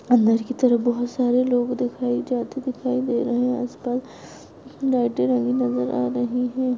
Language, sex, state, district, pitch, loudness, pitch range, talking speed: Hindi, female, Goa, North and South Goa, 245 Hz, -22 LUFS, 230-250 Hz, 160 wpm